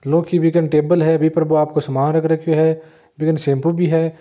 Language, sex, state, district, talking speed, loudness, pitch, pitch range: Marwari, male, Rajasthan, Nagaur, 255 wpm, -17 LUFS, 160 Hz, 155-165 Hz